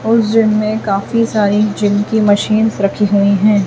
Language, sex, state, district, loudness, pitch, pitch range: Hindi, female, Chhattisgarh, Raipur, -13 LUFS, 210 Hz, 205-220 Hz